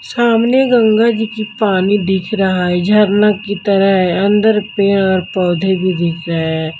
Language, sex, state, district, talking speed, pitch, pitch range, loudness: Hindi, female, Haryana, Jhajjar, 175 wpm, 200 Hz, 185-215 Hz, -13 LUFS